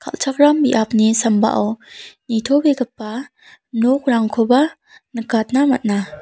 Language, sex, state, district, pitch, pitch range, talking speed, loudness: Garo, female, Meghalaya, South Garo Hills, 235 Hz, 220-275 Hz, 70 wpm, -17 LUFS